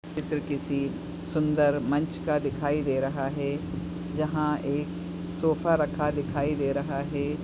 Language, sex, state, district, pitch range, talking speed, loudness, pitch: Hindi, female, Goa, North and South Goa, 145-155 Hz, 135 wpm, -28 LUFS, 150 Hz